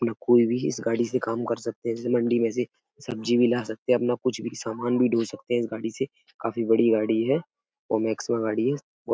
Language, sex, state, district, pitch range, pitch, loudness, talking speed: Hindi, male, Uttar Pradesh, Etah, 115-125 Hz, 120 Hz, -25 LUFS, 255 wpm